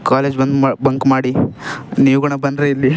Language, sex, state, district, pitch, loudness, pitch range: Kannada, male, Karnataka, Raichur, 135 Hz, -15 LUFS, 130-140 Hz